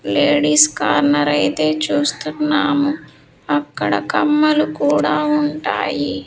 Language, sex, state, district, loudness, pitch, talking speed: Telugu, female, Andhra Pradesh, Sri Satya Sai, -16 LUFS, 150 Hz, 75 wpm